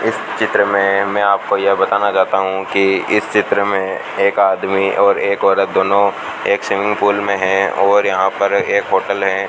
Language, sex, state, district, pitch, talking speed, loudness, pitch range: Hindi, male, Rajasthan, Bikaner, 100 Hz, 190 wpm, -15 LUFS, 95-100 Hz